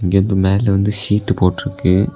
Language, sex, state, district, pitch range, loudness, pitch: Tamil, male, Tamil Nadu, Kanyakumari, 95-105 Hz, -16 LUFS, 100 Hz